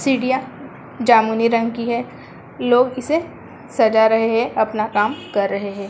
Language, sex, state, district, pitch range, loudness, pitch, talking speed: Hindi, female, Bihar, Sitamarhi, 220-250 Hz, -18 LUFS, 230 Hz, 150 wpm